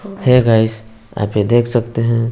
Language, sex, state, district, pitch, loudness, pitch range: Hindi, female, Bihar, West Champaran, 115 Hz, -15 LUFS, 110-120 Hz